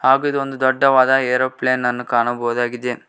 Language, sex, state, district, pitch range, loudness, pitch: Kannada, male, Karnataka, Koppal, 125-135 Hz, -17 LUFS, 130 Hz